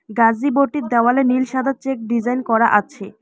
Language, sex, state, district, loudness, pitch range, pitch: Bengali, female, West Bengal, Alipurduar, -17 LUFS, 230-270 Hz, 245 Hz